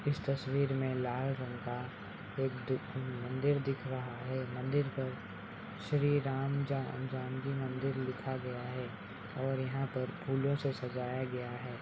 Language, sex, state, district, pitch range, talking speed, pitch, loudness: Hindi, female, Bihar, Saharsa, 125-135 Hz, 150 wpm, 130 Hz, -37 LUFS